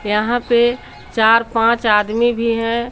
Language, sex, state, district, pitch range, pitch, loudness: Hindi, female, Jharkhand, Garhwa, 220-240 Hz, 230 Hz, -16 LUFS